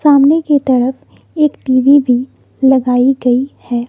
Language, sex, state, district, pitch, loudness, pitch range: Hindi, female, Bihar, West Champaran, 265 Hz, -12 LUFS, 250-285 Hz